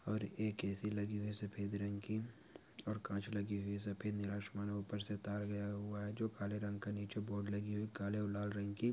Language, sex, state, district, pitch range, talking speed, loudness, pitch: Hindi, male, Chhattisgarh, Bilaspur, 100-105 Hz, 235 wpm, -43 LUFS, 105 Hz